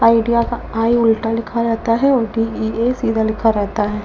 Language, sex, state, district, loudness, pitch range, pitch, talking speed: Hindi, female, Delhi, New Delhi, -17 LUFS, 220-235 Hz, 225 Hz, 220 wpm